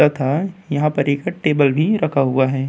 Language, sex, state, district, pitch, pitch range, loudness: Hindi, male, Uttar Pradesh, Budaun, 145 Hz, 135-150 Hz, -18 LUFS